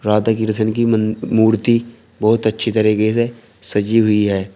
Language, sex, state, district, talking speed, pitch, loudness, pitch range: Hindi, male, Uttar Pradesh, Shamli, 160 wpm, 110 Hz, -16 LUFS, 110-115 Hz